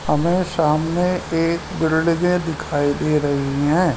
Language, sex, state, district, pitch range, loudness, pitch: Hindi, male, Uttar Pradesh, Ghazipur, 150-175 Hz, -19 LUFS, 165 Hz